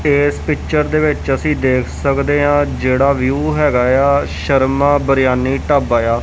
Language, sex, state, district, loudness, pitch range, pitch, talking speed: Punjabi, male, Punjab, Kapurthala, -15 LUFS, 130-145 Hz, 140 Hz, 145 wpm